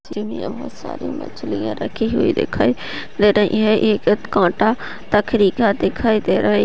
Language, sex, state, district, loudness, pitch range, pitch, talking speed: Hindi, female, Uttar Pradesh, Jyotiba Phule Nagar, -18 LUFS, 200-220 Hz, 210 Hz, 135 wpm